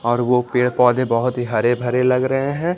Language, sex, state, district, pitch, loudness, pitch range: Hindi, male, Bihar, Patna, 125 Hz, -18 LUFS, 120-130 Hz